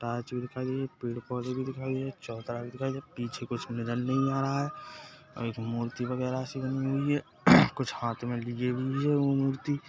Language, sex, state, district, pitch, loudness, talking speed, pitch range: Hindi, male, Chhattisgarh, Kabirdham, 130 Hz, -31 LUFS, 255 wpm, 120-135 Hz